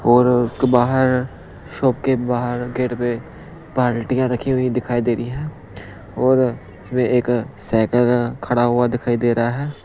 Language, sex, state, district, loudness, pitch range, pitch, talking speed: Hindi, male, Punjab, Pathankot, -19 LUFS, 120-130 Hz, 125 Hz, 150 wpm